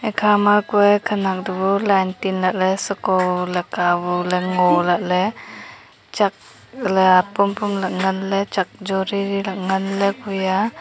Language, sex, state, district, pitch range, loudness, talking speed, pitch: Wancho, female, Arunachal Pradesh, Longding, 185-200 Hz, -19 LUFS, 175 wpm, 190 Hz